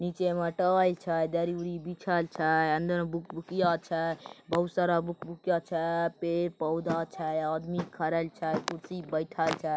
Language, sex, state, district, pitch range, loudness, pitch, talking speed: Maithili, male, Bihar, Begusarai, 165-175 Hz, -30 LUFS, 170 Hz, 140 wpm